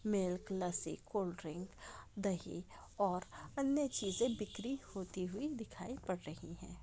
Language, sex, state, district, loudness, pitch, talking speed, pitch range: Hindi, female, Goa, North and South Goa, -41 LUFS, 195 Hz, 125 wpm, 180-230 Hz